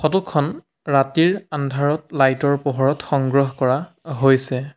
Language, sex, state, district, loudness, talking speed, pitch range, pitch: Assamese, male, Assam, Sonitpur, -19 LUFS, 125 wpm, 135-155 Hz, 140 Hz